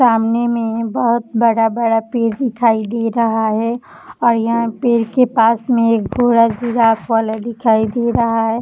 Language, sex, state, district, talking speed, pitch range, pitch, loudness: Hindi, female, Bihar, Darbhanga, 160 wpm, 225-235 Hz, 230 Hz, -15 LUFS